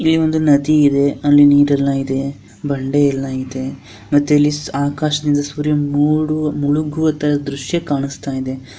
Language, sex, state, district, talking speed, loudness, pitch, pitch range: Kannada, female, Karnataka, Dharwad, 135 wpm, -16 LUFS, 145 Hz, 140-150 Hz